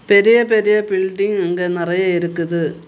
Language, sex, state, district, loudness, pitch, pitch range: Tamil, female, Tamil Nadu, Kanyakumari, -16 LUFS, 190 Hz, 170-205 Hz